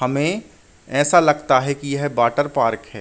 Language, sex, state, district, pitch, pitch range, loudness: Hindi, male, Uttar Pradesh, Muzaffarnagar, 140 Hz, 125-145 Hz, -19 LUFS